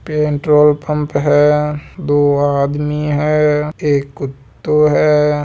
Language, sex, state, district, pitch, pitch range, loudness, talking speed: Marwari, male, Rajasthan, Nagaur, 150 Hz, 145-150 Hz, -14 LUFS, 100 wpm